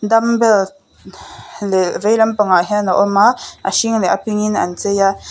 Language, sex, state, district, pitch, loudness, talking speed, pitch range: Mizo, female, Mizoram, Aizawl, 210 Hz, -15 LUFS, 190 wpm, 195-220 Hz